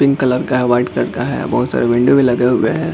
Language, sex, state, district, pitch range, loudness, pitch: Hindi, male, Bihar, Darbhanga, 120-135 Hz, -15 LUFS, 125 Hz